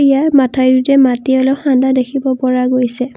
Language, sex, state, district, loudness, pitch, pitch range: Assamese, female, Assam, Kamrup Metropolitan, -12 LUFS, 260 Hz, 255-275 Hz